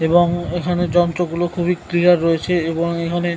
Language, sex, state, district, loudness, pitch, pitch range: Bengali, male, West Bengal, North 24 Parganas, -18 LUFS, 175 Hz, 170-175 Hz